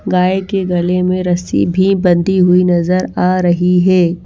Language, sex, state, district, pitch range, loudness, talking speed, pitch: Hindi, female, Odisha, Malkangiri, 180-185 Hz, -13 LUFS, 170 wpm, 180 Hz